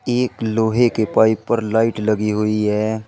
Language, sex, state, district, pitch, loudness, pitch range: Hindi, male, Uttar Pradesh, Shamli, 110 Hz, -18 LUFS, 105-115 Hz